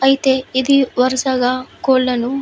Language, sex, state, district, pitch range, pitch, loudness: Telugu, female, Andhra Pradesh, Visakhapatnam, 255-270 Hz, 260 Hz, -16 LUFS